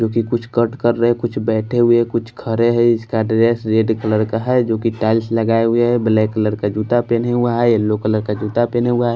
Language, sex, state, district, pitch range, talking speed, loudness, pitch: Hindi, male, Maharashtra, Washim, 110-120 Hz, 255 wpm, -17 LUFS, 115 Hz